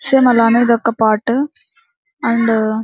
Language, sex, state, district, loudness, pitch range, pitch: Telugu, female, Andhra Pradesh, Anantapur, -14 LUFS, 225-275 Hz, 235 Hz